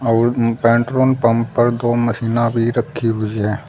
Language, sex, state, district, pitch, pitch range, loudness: Hindi, male, Uttar Pradesh, Saharanpur, 115 Hz, 115-120 Hz, -17 LUFS